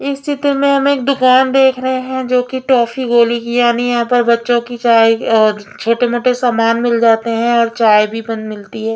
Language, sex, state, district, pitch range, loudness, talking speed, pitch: Hindi, female, Punjab, Fazilka, 230-255 Hz, -13 LUFS, 215 wpm, 240 Hz